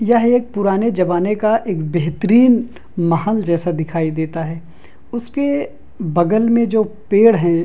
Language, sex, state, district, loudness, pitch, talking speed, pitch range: Hindi, male, Bihar, Madhepura, -16 LUFS, 205 Hz, 150 wpm, 170-230 Hz